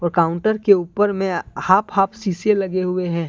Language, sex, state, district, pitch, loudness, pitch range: Hindi, male, Jharkhand, Deoghar, 190 Hz, -19 LUFS, 175-205 Hz